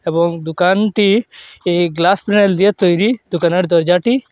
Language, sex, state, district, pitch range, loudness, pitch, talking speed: Bengali, male, Assam, Hailakandi, 175-205 Hz, -14 LUFS, 185 Hz, 95 wpm